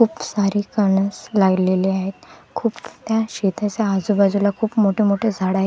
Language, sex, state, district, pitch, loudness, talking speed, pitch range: Marathi, female, Maharashtra, Gondia, 200 Hz, -19 LUFS, 150 wpm, 195-220 Hz